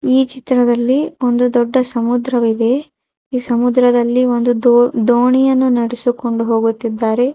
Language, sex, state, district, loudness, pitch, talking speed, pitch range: Kannada, female, Karnataka, Raichur, -14 LUFS, 245 Hz, 100 wpm, 235-255 Hz